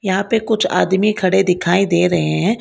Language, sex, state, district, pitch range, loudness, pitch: Hindi, female, Karnataka, Bangalore, 180-210 Hz, -16 LUFS, 190 Hz